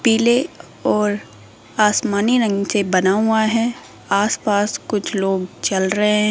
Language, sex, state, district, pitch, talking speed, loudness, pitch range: Hindi, female, Rajasthan, Jaipur, 210 Hz, 135 wpm, -18 LUFS, 195-225 Hz